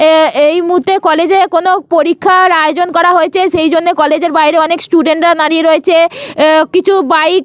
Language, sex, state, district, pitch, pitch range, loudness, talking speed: Bengali, female, Jharkhand, Sahebganj, 330 Hz, 315-355 Hz, -9 LUFS, 170 wpm